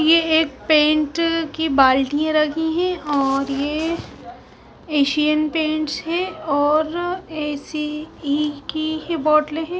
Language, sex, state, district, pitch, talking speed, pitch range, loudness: Hindi, female, Punjab, Fazilka, 310 Hz, 110 wpm, 295-320 Hz, -20 LUFS